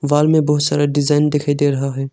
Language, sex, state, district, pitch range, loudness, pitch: Hindi, male, Arunachal Pradesh, Longding, 145-150 Hz, -16 LUFS, 145 Hz